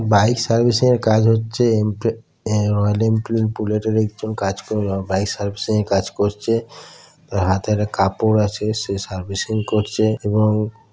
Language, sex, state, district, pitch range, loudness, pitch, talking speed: Bengali, male, West Bengal, Kolkata, 100-110 Hz, -19 LUFS, 105 Hz, 145 wpm